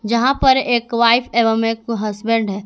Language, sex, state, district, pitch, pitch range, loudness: Hindi, female, Jharkhand, Garhwa, 230 Hz, 225-240 Hz, -16 LUFS